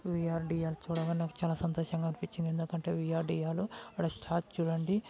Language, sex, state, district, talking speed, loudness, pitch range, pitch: Telugu, male, Andhra Pradesh, Guntur, 260 wpm, -35 LUFS, 165-170 Hz, 165 Hz